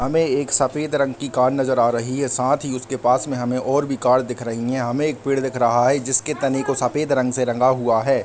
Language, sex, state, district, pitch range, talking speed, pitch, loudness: Hindi, male, Bihar, Gopalganj, 125-140 Hz, 290 wpm, 130 Hz, -20 LUFS